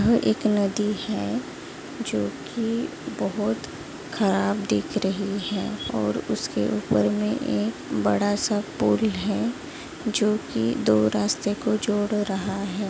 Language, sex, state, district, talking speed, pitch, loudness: Hindi, female, Maharashtra, Chandrapur, 130 wpm, 195 Hz, -25 LUFS